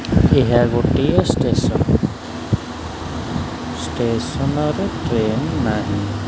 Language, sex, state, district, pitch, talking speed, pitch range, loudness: Odia, male, Odisha, Khordha, 85 Hz, 55 wpm, 80-110 Hz, -19 LUFS